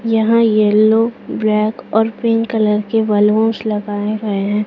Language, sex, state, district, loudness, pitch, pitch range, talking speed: Hindi, female, Chhattisgarh, Raipur, -15 LUFS, 215 Hz, 210-225 Hz, 140 wpm